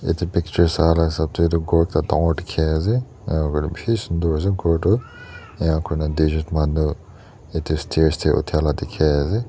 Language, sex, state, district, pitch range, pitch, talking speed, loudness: Nagamese, male, Nagaland, Dimapur, 80-90 Hz, 80 Hz, 175 wpm, -20 LUFS